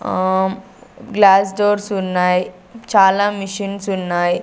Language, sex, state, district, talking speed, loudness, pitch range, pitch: Telugu, female, Andhra Pradesh, Sri Satya Sai, 95 wpm, -16 LUFS, 185-205 Hz, 195 Hz